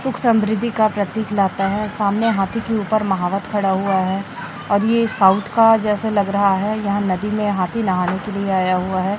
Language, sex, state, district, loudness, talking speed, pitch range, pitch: Hindi, female, Chhattisgarh, Raipur, -18 LUFS, 210 wpm, 195-215 Hz, 205 Hz